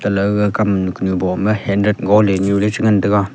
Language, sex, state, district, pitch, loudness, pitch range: Wancho, male, Arunachal Pradesh, Longding, 100 Hz, -16 LUFS, 95-105 Hz